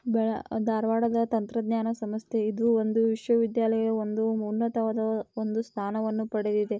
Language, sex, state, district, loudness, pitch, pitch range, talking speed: Kannada, female, Karnataka, Belgaum, -28 LUFS, 225 Hz, 220-230 Hz, 105 wpm